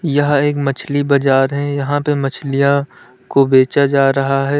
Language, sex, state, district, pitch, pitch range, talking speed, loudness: Hindi, male, Uttar Pradesh, Lalitpur, 140 Hz, 135-145 Hz, 170 wpm, -15 LUFS